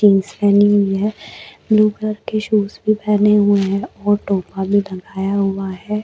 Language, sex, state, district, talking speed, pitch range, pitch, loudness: Hindi, female, Chhattisgarh, Bastar, 180 wpm, 195-210 Hz, 205 Hz, -17 LUFS